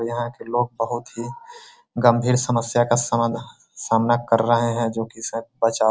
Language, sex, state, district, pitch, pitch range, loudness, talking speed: Hindi, male, Bihar, Muzaffarpur, 120 Hz, 115-120 Hz, -21 LUFS, 185 wpm